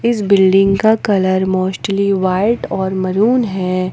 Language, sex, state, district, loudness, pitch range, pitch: Hindi, female, Jharkhand, Ranchi, -14 LUFS, 185-210 Hz, 195 Hz